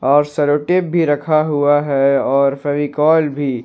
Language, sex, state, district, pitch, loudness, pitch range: Hindi, male, Jharkhand, Ranchi, 145 Hz, -15 LUFS, 140-155 Hz